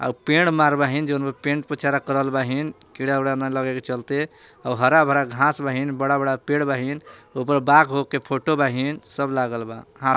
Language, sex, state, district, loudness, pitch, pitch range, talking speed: Bhojpuri, male, Jharkhand, Palamu, -21 LUFS, 140 Hz, 135-145 Hz, 185 wpm